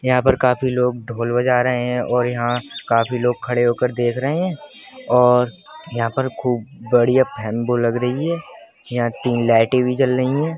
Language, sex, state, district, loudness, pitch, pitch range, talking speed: Hindi, male, Uttar Pradesh, Budaun, -19 LUFS, 125 Hz, 120-130 Hz, 195 wpm